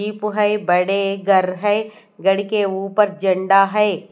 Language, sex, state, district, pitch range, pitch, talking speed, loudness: Hindi, female, Odisha, Nuapada, 195-210 Hz, 200 Hz, 145 wpm, -18 LUFS